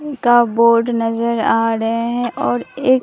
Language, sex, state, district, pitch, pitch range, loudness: Hindi, female, Bihar, Katihar, 235 Hz, 225-240 Hz, -16 LUFS